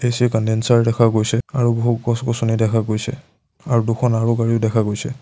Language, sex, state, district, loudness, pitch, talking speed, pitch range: Assamese, male, Assam, Sonitpur, -18 LUFS, 115 Hz, 175 wpm, 115-120 Hz